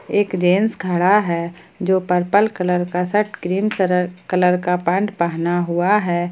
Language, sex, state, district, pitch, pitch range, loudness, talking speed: Hindi, female, Jharkhand, Ranchi, 180 Hz, 175-200 Hz, -18 LUFS, 160 wpm